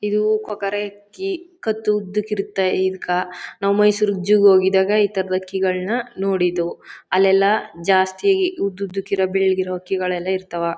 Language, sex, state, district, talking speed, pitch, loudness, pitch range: Kannada, female, Karnataka, Chamarajanagar, 120 wpm, 195 Hz, -20 LUFS, 185-210 Hz